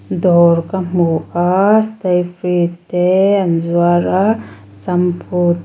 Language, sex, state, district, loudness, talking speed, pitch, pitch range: Mizo, female, Mizoram, Aizawl, -14 LUFS, 115 wpm, 175 Hz, 170-185 Hz